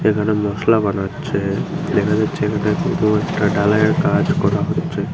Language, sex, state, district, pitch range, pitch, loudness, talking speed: Bengali, female, Tripura, Unakoti, 100-110 Hz, 105 Hz, -18 LUFS, 140 wpm